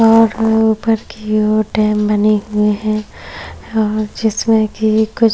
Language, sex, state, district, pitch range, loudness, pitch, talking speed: Hindi, female, Maharashtra, Chandrapur, 215-220 Hz, -15 LUFS, 215 Hz, 145 wpm